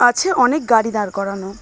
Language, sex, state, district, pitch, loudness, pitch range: Bengali, female, West Bengal, Dakshin Dinajpur, 225 Hz, -17 LUFS, 200-245 Hz